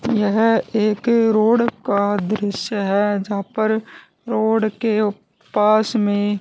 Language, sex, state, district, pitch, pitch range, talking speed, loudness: Hindi, male, Haryana, Jhajjar, 215 Hz, 205-225 Hz, 110 wpm, -19 LUFS